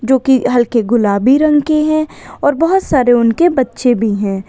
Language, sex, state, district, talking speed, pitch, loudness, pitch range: Hindi, female, Uttar Pradesh, Lalitpur, 185 wpm, 260 Hz, -13 LUFS, 235-305 Hz